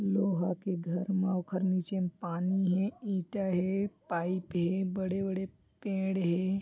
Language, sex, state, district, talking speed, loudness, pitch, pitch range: Chhattisgarhi, male, Chhattisgarh, Bilaspur, 145 wpm, -32 LUFS, 190 Hz, 180-195 Hz